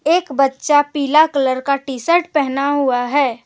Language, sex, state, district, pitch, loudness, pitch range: Hindi, female, Jharkhand, Deoghar, 280 Hz, -16 LUFS, 265-295 Hz